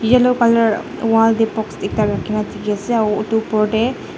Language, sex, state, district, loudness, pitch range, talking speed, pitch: Nagamese, female, Nagaland, Dimapur, -17 LUFS, 215-230 Hz, 170 wpm, 225 Hz